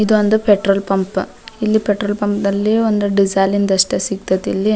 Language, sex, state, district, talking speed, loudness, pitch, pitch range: Kannada, female, Karnataka, Dharwad, 165 wpm, -16 LUFS, 200 Hz, 195-215 Hz